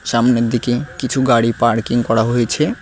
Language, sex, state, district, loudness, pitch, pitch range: Bengali, male, West Bengal, Cooch Behar, -16 LUFS, 120 Hz, 115-120 Hz